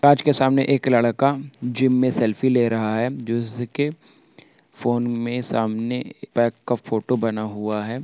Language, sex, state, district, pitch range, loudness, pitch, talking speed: Hindi, male, Chhattisgarh, Jashpur, 115-130 Hz, -21 LUFS, 120 Hz, 165 wpm